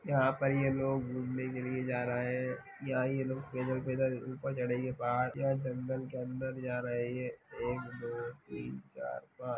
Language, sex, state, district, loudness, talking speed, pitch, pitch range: Hindi, male, Bihar, Lakhisarai, -36 LUFS, 190 wpm, 130 Hz, 125-130 Hz